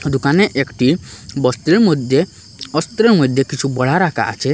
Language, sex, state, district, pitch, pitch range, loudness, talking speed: Bengali, male, Assam, Hailakandi, 135 Hz, 130-155 Hz, -16 LUFS, 95 wpm